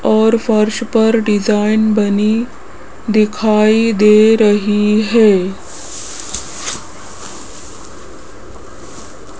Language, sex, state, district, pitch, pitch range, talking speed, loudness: Hindi, female, Rajasthan, Jaipur, 215 Hz, 210-225 Hz, 55 wpm, -13 LUFS